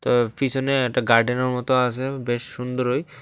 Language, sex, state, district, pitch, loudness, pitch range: Bengali, male, Tripura, West Tripura, 125 Hz, -22 LUFS, 125-135 Hz